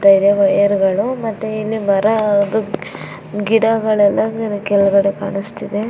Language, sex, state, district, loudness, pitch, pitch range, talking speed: Kannada, female, Karnataka, Shimoga, -16 LUFS, 205 Hz, 200-220 Hz, 90 wpm